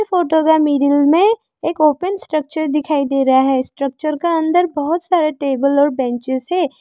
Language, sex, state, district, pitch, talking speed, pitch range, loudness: Hindi, female, Arunachal Pradesh, Lower Dibang Valley, 305 Hz, 175 wpm, 280-340 Hz, -16 LUFS